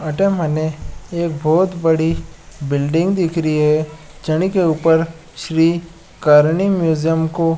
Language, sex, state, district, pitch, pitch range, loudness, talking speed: Marwari, male, Rajasthan, Nagaur, 160 Hz, 155-170 Hz, -17 LUFS, 125 wpm